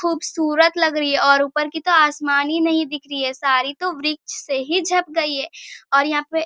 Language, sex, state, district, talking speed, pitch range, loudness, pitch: Hindi, female, Bihar, Bhagalpur, 250 wpm, 280-330 Hz, -19 LUFS, 305 Hz